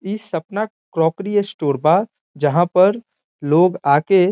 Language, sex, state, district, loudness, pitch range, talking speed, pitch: Bhojpuri, male, Bihar, Saran, -18 LUFS, 160-205 Hz, 140 wpm, 180 Hz